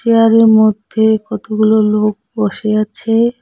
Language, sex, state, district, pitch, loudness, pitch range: Bengali, female, West Bengal, Cooch Behar, 220 Hz, -13 LUFS, 215-225 Hz